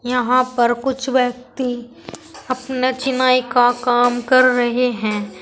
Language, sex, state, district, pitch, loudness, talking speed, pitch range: Hindi, female, Uttar Pradesh, Saharanpur, 250 Hz, -17 LUFS, 120 wpm, 245-255 Hz